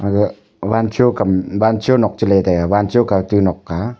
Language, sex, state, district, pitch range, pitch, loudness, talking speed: Wancho, male, Arunachal Pradesh, Longding, 95-115 Hz, 105 Hz, -16 LUFS, 150 wpm